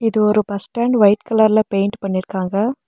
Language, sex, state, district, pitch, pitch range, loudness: Tamil, female, Tamil Nadu, Nilgiris, 210 Hz, 195-220 Hz, -17 LUFS